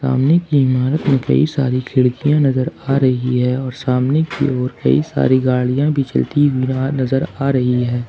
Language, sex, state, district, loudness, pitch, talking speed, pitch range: Hindi, male, Jharkhand, Ranchi, -16 LUFS, 130 Hz, 190 wpm, 125-140 Hz